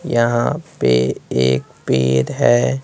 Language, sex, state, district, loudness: Hindi, male, Bihar, West Champaran, -17 LUFS